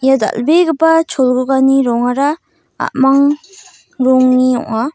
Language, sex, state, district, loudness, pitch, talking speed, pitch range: Garo, female, Meghalaya, West Garo Hills, -13 LUFS, 270 Hz, 85 wpm, 255-320 Hz